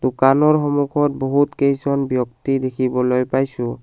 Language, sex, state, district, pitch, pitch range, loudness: Assamese, male, Assam, Kamrup Metropolitan, 135 Hz, 130-140 Hz, -18 LUFS